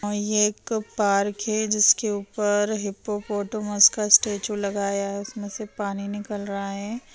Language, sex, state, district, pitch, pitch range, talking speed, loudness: Hindi, female, Bihar, Saharsa, 205 Hz, 200-210 Hz, 150 wpm, -23 LUFS